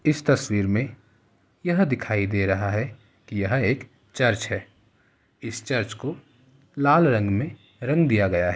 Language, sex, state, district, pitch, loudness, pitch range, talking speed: Hindi, male, Uttar Pradesh, Ghazipur, 115 Hz, -24 LUFS, 100-135 Hz, 160 wpm